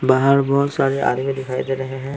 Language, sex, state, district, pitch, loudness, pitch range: Hindi, male, Bihar, Patna, 135 Hz, -19 LUFS, 130-140 Hz